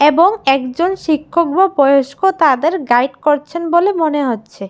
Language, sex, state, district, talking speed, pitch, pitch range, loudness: Bengali, female, Tripura, West Tripura, 140 wpm, 310 Hz, 275-345 Hz, -14 LUFS